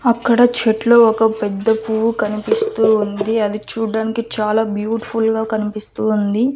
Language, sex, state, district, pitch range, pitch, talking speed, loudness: Telugu, female, Andhra Pradesh, Annamaya, 215-230 Hz, 220 Hz, 130 wpm, -17 LUFS